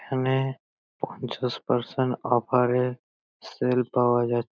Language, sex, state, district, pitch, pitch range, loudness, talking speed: Bengali, male, West Bengal, North 24 Parganas, 125 Hz, 120-130 Hz, -26 LUFS, 120 wpm